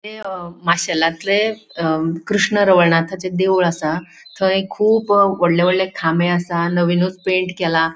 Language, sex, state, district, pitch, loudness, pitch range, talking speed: Konkani, female, Goa, North and South Goa, 180 Hz, -17 LUFS, 170-195 Hz, 130 wpm